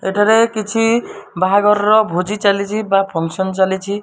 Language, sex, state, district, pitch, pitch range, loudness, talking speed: Odia, male, Odisha, Malkangiri, 200 Hz, 190-215 Hz, -15 LUFS, 120 wpm